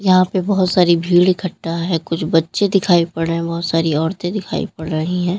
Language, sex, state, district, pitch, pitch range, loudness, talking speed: Hindi, female, Uttar Pradesh, Lalitpur, 175 Hz, 165-185 Hz, -17 LUFS, 220 wpm